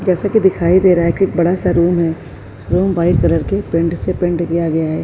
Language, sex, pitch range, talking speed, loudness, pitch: Urdu, female, 165-185 Hz, 250 wpm, -15 LUFS, 170 Hz